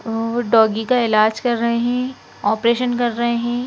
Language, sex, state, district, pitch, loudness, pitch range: Hindi, female, Madhya Pradesh, Bhopal, 235 Hz, -18 LUFS, 225-245 Hz